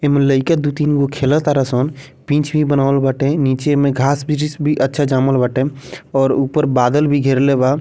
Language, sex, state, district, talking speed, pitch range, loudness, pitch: Bhojpuri, male, Bihar, Muzaffarpur, 185 wpm, 135-145 Hz, -16 LUFS, 140 Hz